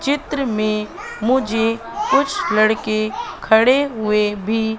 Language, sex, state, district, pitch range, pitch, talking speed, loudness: Hindi, female, Madhya Pradesh, Katni, 215-260 Hz, 220 Hz, 100 wpm, -18 LUFS